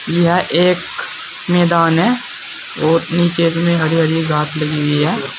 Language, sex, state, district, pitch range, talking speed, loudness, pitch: Hindi, male, Uttar Pradesh, Saharanpur, 160-175 Hz, 145 wpm, -15 LUFS, 170 Hz